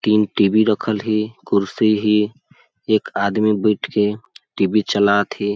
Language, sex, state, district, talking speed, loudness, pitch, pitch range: Awadhi, male, Chhattisgarh, Balrampur, 170 wpm, -18 LUFS, 105 Hz, 105-110 Hz